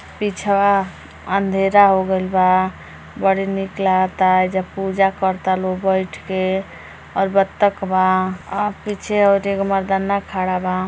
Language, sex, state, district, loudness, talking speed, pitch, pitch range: Hindi, female, Uttar Pradesh, Gorakhpur, -18 LUFS, 140 wpm, 195 Hz, 185-195 Hz